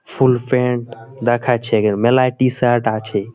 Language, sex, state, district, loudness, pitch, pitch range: Bengali, male, West Bengal, Malda, -17 LUFS, 120 Hz, 115-125 Hz